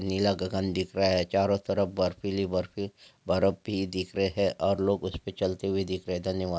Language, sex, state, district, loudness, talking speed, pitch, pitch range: Angika, male, Bihar, Madhepura, -29 LUFS, 220 wpm, 95 Hz, 95-100 Hz